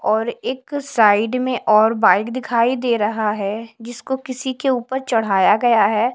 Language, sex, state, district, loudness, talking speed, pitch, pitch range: Hindi, female, Delhi, New Delhi, -18 LUFS, 155 wpm, 235 Hz, 220-255 Hz